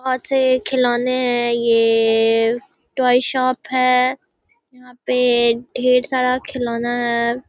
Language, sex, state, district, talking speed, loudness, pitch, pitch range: Hindi, female, Bihar, Muzaffarpur, 110 wpm, -17 LUFS, 250 Hz, 235-255 Hz